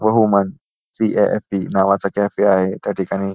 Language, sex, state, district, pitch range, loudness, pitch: Marathi, male, Maharashtra, Pune, 95-100 Hz, -18 LUFS, 100 Hz